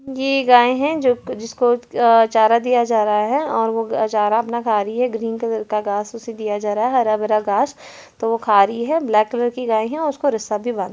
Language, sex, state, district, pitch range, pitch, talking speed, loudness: Hindi, female, Chhattisgarh, Jashpur, 215-245 Hz, 230 Hz, 220 wpm, -18 LUFS